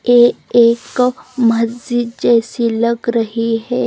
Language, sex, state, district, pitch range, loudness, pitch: Hindi, female, Chandigarh, Chandigarh, 230-240 Hz, -15 LUFS, 235 Hz